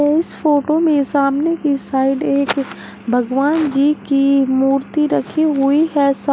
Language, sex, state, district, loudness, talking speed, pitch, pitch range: Hindi, female, Uttar Pradesh, Shamli, -16 LUFS, 135 wpm, 280 Hz, 275-300 Hz